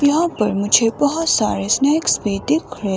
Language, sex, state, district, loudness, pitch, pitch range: Hindi, female, Himachal Pradesh, Shimla, -17 LUFS, 255 Hz, 205-300 Hz